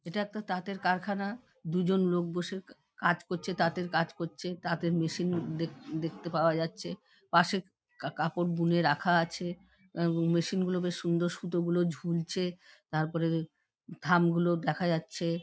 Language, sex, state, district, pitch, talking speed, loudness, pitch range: Bengali, female, West Bengal, Dakshin Dinajpur, 175 Hz, 135 wpm, -31 LUFS, 170-180 Hz